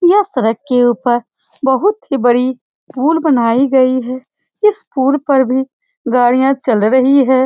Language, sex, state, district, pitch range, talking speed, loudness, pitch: Hindi, female, Bihar, Supaul, 250-290 Hz, 170 wpm, -13 LUFS, 260 Hz